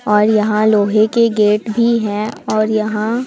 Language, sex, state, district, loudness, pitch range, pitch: Hindi, female, Chhattisgarh, Raipur, -14 LUFS, 210-225 Hz, 215 Hz